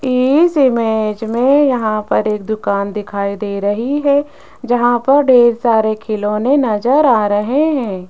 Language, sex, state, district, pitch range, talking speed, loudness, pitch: Hindi, female, Rajasthan, Jaipur, 210-275 Hz, 150 wpm, -14 LUFS, 235 Hz